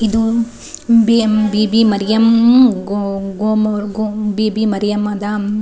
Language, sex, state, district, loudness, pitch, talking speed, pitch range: Kannada, female, Karnataka, Raichur, -14 LUFS, 215 Hz, 95 wpm, 205-225 Hz